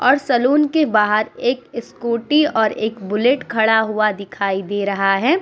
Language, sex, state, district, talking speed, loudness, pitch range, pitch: Hindi, female, Uttar Pradesh, Muzaffarnagar, 165 wpm, -18 LUFS, 210-255 Hz, 225 Hz